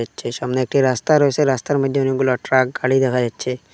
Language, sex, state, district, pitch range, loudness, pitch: Bengali, male, Assam, Hailakandi, 125-135 Hz, -18 LUFS, 130 Hz